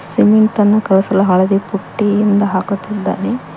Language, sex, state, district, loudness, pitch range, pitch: Kannada, female, Karnataka, Koppal, -14 LUFS, 195-210 Hz, 200 Hz